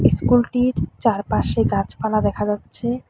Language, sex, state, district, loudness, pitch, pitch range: Bengali, female, West Bengal, Alipurduar, -20 LUFS, 240 Hz, 215-245 Hz